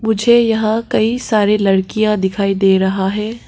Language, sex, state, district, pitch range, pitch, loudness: Hindi, female, Arunachal Pradesh, Papum Pare, 195-220 Hz, 210 Hz, -14 LUFS